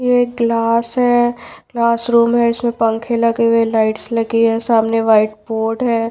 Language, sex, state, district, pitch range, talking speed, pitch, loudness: Hindi, female, Bihar, Patna, 225-235 Hz, 175 wpm, 230 Hz, -15 LUFS